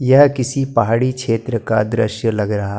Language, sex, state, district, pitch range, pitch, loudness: Hindi, male, Maharashtra, Gondia, 110-130 Hz, 115 Hz, -17 LUFS